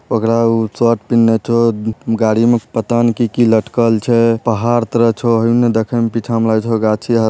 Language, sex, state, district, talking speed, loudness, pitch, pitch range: Hindi, male, Bihar, Purnia, 220 wpm, -14 LUFS, 115 Hz, 115-120 Hz